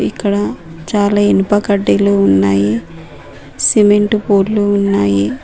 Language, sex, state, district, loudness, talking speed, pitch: Telugu, female, Telangana, Mahabubabad, -13 LUFS, 75 wpm, 195 Hz